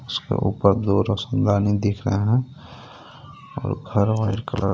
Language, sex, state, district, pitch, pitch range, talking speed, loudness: Hindi, male, Jharkhand, Garhwa, 110 Hz, 100-130 Hz, 140 wpm, -22 LUFS